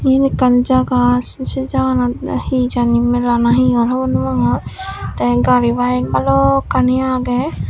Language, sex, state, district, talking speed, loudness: Chakma, female, Tripura, Dhalai, 140 wpm, -15 LUFS